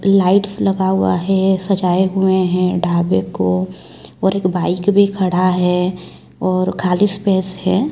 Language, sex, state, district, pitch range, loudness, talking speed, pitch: Hindi, female, Chhattisgarh, Raipur, 180-190 Hz, -16 LUFS, 145 wpm, 185 Hz